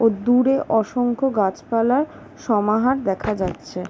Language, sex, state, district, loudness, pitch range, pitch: Bengali, female, West Bengal, Jhargram, -20 LUFS, 210-255 Hz, 230 Hz